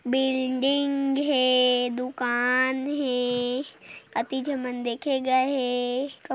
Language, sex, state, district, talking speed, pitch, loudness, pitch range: Hindi, female, Chhattisgarh, Korba, 95 wpm, 260 Hz, -25 LUFS, 245-270 Hz